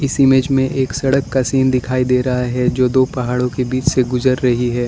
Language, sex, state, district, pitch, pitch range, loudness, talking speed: Hindi, male, Arunachal Pradesh, Lower Dibang Valley, 130 Hz, 125-130 Hz, -16 LUFS, 245 wpm